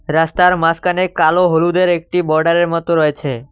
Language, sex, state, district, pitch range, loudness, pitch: Bengali, male, West Bengal, Cooch Behar, 160-180 Hz, -14 LUFS, 170 Hz